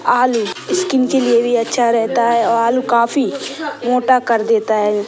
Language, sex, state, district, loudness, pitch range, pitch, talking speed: Hindi, female, Bihar, Saran, -15 LUFS, 230-250 Hz, 235 Hz, 165 wpm